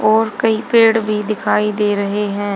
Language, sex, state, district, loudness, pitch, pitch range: Hindi, female, Haryana, Charkhi Dadri, -16 LUFS, 215 Hz, 205-225 Hz